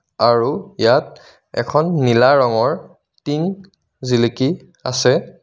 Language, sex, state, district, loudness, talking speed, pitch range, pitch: Assamese, male, Assam, Kamrup Metropolitan, -17 LUFS, 90 wpm, 120-165 Hz, 135 Hz